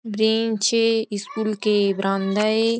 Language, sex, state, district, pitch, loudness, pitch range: Hindi, female, Chhattisgarh, Rajnandgaon, 220 Hz, -21 LUFS, 205-225 Hz